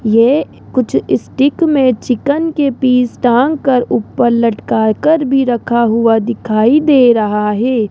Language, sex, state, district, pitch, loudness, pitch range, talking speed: Hindi, male, Rajasthan, Jaipur, 245 Hz, -13 LUFS, 230-275 Hz, 135 wpm